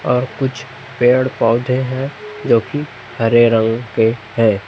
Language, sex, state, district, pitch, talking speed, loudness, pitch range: Hindi, male, Chhattisgarh, Raipur, 120 Hz, 140 wpm, -16 LUFS, 115-130 Hz